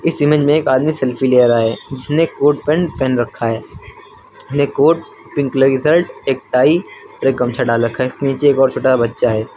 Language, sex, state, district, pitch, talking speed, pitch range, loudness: Hindi, male, Uttar Pradesh, Lucknow, 135 Hz, 225 wpm, 125-150 Hz, -15 LUFS